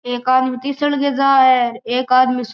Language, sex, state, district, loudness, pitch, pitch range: Marwari, male, Rajasthan, Churu, -15 LUFS, 255 Hz, 245-275 Hz